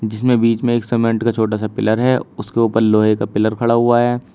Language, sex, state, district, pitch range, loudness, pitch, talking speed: Hindi, male, Uttar Pradesh, Shamli, 110-120 Hz, -16 LUFS, 115 Hz, 250 wpm